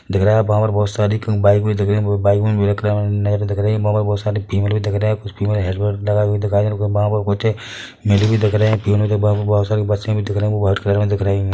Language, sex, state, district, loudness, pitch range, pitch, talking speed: Hindi, male, Chhattisgarh, Bilaspur, -17 LUFS, 100-105 Hz, 105 Hz, 270 wpm